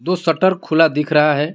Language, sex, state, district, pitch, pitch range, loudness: Hindi, male, Jharkhand, Garhwa, 160 Hz, 150-175 Hz, -16 LUFS